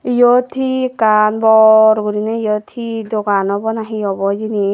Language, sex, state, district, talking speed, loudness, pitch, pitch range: Chakma, female, Tripura, West Tripura, 150 wpm, -14 LUFS, 220 Hz, 210-230 Hz